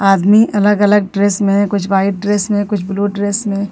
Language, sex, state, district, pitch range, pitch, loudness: Hindi, female, Bihar, Katihar, 195-205 Hz, 205 Hz, -14 LUFS